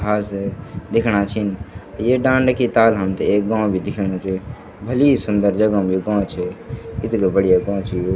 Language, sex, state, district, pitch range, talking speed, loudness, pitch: Garhwali, male, Uttarakhand, Tehri Garhwal, 95-115 Hz, 190 wpm, -19 LUFS, 100 Hz